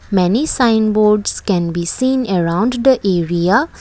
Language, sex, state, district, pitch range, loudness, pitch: English, female, Assam, Kamrup Metropolitan, 180-245 Hz, -15 LUFS, 210 Hz